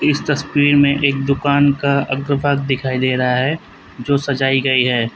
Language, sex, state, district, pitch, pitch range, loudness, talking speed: Hindi, male, Uttar Pradesh, Lalitpur, 140 Hz, 130-145 Hz, -16 LUFS, 185 wpm